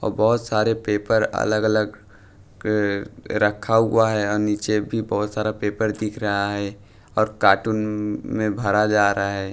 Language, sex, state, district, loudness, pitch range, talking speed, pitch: Hindi, male, Punjab, Pathankot, -22 LUFS, 100-110 Hz, 150 wpm, 105 Hz